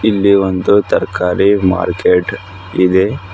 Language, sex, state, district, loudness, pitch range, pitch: Kannada, male, Karnataka, Bidar, -13 LUFS, 90-100 Hz, 95 Hz